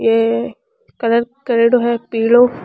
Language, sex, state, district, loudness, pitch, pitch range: Rajasthani, female, Rajasthan, Churu, -15 LUFS, 235 Hz, 230-245 Hz